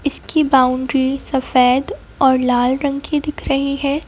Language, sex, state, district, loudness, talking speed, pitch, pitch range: Hindi, female, Madhya Pradesh, Bhopal, -17 LUFS, 145 wpm, 275 Hz, 260-285 Hz